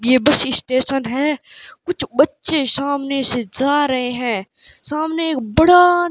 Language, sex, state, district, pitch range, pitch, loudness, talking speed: Hindi, male, Rajasthan, Bikaner, 255-305 Hz, 275 Hz, -17 LUFS, 135 wpm